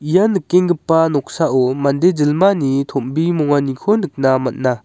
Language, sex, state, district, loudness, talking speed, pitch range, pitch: Garo, male, Meghalaya, West Garo Hills, -16 LUFS, 100 wpm, 135-175 Hz, 150 Hz